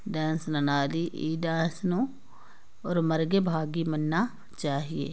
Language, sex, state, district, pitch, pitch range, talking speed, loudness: Sadri, female, Chhattisgarh, Jashpur, 165 Hz, 155-180 Hz, 130 wpm, -29 LUFS